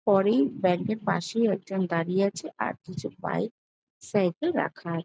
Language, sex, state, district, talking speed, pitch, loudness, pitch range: Bengali, female, West Bengal, Jhargram, 155 wpm, 195 Hz, -27 LUFS, 180-220 Hz